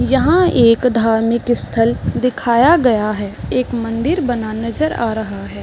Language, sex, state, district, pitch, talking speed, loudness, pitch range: Hindi, female, Chhattisgarh, Raigarh, 235 Hz, 150 wpm, -16 LUFS, 225-250 Hz